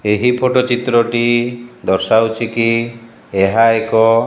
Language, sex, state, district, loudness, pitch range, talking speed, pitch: Odia, male, Odisha, Malkangiri, -15 LUFS, 110-120 Hz, 110 wpm, 115 Hz